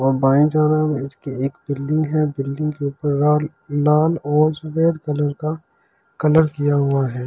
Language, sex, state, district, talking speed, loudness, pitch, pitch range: Hindi, male, Delhi, New Delhi, 165 wpm, -19 LUFS, 150 Hz, 140-155 Hz